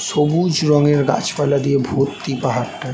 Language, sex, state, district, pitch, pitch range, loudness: Bengali, male, West Bengal, North 24 Parganas, 140 Hz, 135-150 Hz, -17 LUFS